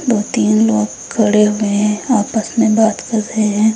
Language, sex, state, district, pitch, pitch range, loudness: Hindi, female, Uttar Pradesh, Lucknow, 210 Hz, 205-220 Hz, -15 LUFS